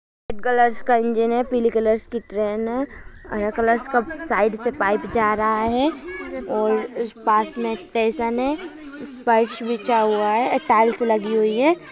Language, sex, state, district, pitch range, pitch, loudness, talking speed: Hindi, male, Maharashtra, Nagpur, 220-245 Hz, 230 Hz, -21 LUFS, 145 wpm